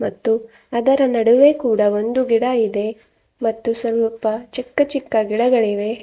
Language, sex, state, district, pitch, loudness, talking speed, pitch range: Kannada, female, Karnataka, Bidar, 230 Hz, -18 LUFS, 120 wpm, 220-250 Hz